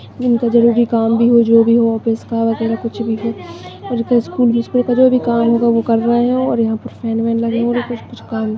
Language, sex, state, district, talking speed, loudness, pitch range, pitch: Hindi, female, Maharashtra, Chandrapur, 145 wpm, -15 LUFS, 225-240 Hz, 235 Hz